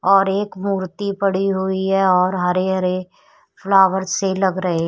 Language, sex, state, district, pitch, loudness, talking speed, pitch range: Hindi, female, Uttar Pradesh, Shamli, 190 Hz, -18 LUFS, 160 wpm, 185-195 Hz